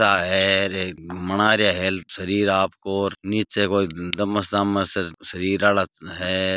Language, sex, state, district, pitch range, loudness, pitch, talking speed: Marwari, male, Rajasthan, Nagaur, 95-100 Hz, -22 LUFS, 95 Hz, 145 wpm